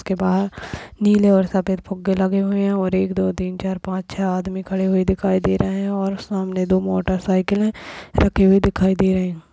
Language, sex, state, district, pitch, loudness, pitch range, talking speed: Hindi, female, Bihar, Madhepura, 190 Hz, -20 LUFS, 185-195 Hz, 215 wpm